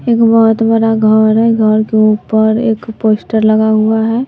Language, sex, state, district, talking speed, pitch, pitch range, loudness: Hindi, female, Bihar, West Champaran, 180 wpm, 220 Hz, 215-225 Hz, -11 LUFS